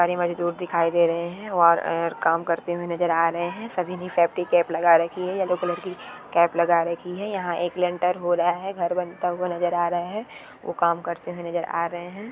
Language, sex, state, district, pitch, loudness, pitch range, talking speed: Hindi, female, Andhra Pradesh, Chittoor, 175 Hz, -24 LUFS, 170-180 Hz, 240 wpm